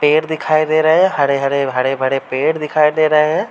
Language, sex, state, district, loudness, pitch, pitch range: Hindi, male, Uttar Pradesh, Varanasi, -15 LUFS, 150 Hz, 140-155 Hz